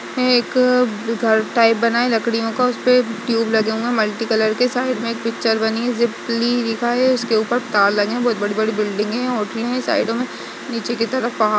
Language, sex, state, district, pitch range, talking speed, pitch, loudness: Hindi, female, Uttarakhand, Uttarkashi, 220-245 Hz, 225 wpm, 230 Hz, -18 LUFS